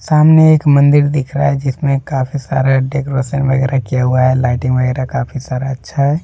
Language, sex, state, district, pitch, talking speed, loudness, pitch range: Hindi, male, Jharkhand, Deoghar, 135 Hz, 185 wpm, -14 LUFS, 130-140 Hz